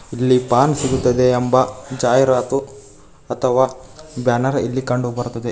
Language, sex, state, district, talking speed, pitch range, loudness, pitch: Kannada, male, Karnataka, Koppal, 110 wpm, 125-130 Hz, -18 LUFS, 130 Hz